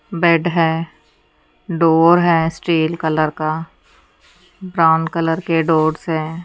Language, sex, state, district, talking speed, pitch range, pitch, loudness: Hindi, female, Haryana, Charkhi Dadri, 110 wpm, 160-170 Hz, 165 Hz, -16 LUFS